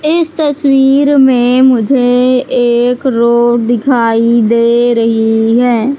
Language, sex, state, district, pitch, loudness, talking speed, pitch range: Hindi, female, Madhya Pradesh, Katni, 245 Hz, -10 LUFS, 100 wpm, 235-265 Hz